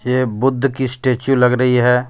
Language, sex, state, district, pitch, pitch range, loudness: Hindi, male, Jharkhand, Deoghar, 125 Hz, 125-130 Hz, -16 LUFS